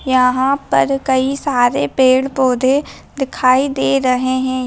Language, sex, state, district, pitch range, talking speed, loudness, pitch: Hindi, female, Bihar, Darbhanga, 255-275 Hz, 115 wpm, -15 LUFS, 260 Hz